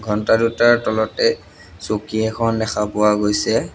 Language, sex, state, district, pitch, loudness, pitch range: Assamese, male, Assam, Sonitpur, 110 Hz, -18 LUFS, 105-115 Hz